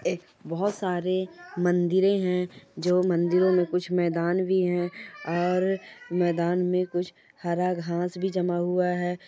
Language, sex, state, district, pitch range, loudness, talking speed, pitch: Hindi, female, Chhattisgarh, Jashpur, 175-185 Hz, -26 LUFS, 140 wpm, 180 Hz